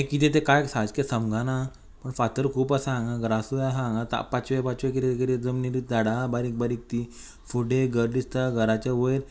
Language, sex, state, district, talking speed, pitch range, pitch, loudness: Konkani, male, Goa, North and South Goa, 200 wpm, 120-130 Hz, 125 Hz, -26 LUFS